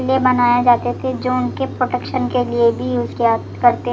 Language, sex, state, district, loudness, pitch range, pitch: Hindi, female, Delhi, New Delhi, -17 LUFS, 235-255 Hz, 245 Hz